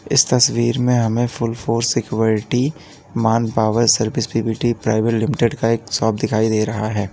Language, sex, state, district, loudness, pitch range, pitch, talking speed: Hindi, male, Uttar Pradesh, Lalitpur, -18 LUFS, 110-120 Hz, 115 Hz, 160 wpm